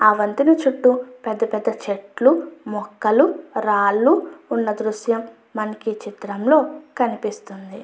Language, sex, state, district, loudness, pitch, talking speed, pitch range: Telugu, female, Andhra Pradesh, Guntur, -20 LUFS, 225 Hz, 115 wpm, 210-270 Hz